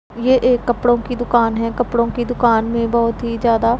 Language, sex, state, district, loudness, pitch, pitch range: Hindi, female, Punjab, Pathankot, -17 LUFS, 235 Hz, 230-245 Hz